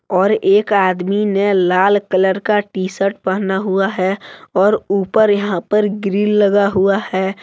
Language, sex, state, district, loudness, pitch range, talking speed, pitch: Hindi, male, Jharkhand, Deoghar, -15 LUFS, 190-205 Hz, 155 wpm, 195 Hz